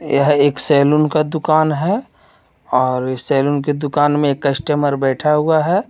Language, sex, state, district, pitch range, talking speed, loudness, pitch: Hindi, male, Jharkhand, Ranchi, 140-155 Hz, 165 wpm, -16 LUFS, 145 Hz